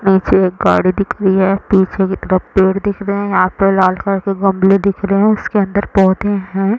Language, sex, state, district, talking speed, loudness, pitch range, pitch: Hindi, female, Chhattisgarh, Raigarh, 195 wpm, -14 LUFS, 190-200 Hz, 195 Hz